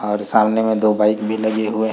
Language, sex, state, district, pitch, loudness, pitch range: Hindi, male, Uttar Pradesh, Muzaffarnagar, 110 Hz, -17 LUFS, 105-110 Hz